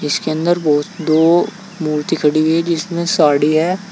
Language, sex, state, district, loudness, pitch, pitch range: Hindi, male, Uttar Pradesh, Saharanpur, -15 LUFS, 160 Hz, 150-170 Hz